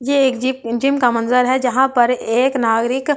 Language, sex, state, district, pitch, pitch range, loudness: Hindi, female, Delhi, New Delhi, 250 Hz, 240-265 Hz, -16 LUFS